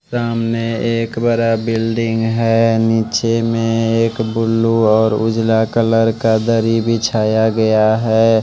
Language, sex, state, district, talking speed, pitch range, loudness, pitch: Hindi, male, Odisha, Malkangiri, 130 wpm, 110-115 Hz, -15 LUFS, 115 Hz